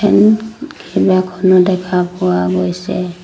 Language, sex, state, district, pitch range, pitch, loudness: Assamese, female, Assam, Sonitpur, 180-190 Hz, 185 Hz, -14 LUFS